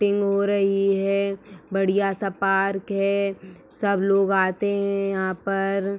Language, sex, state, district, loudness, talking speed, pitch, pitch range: Hindi, female, Uttar Pradesh, Etah, -23 LUFS, 140 wpm, 195 Hz, 195-200 Hz